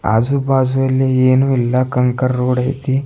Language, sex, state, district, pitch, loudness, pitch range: Kannada, male, Karnataka, Bidar, 130 Hz, -15 LUFS, 125-135 Hz